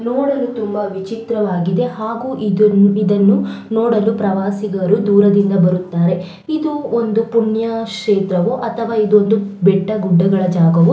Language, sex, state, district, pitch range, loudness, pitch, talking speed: Kannada, female, Karnataka, Belgaum, 195-225 Hz, -15 LUFS, 210 Hz, 110 wpm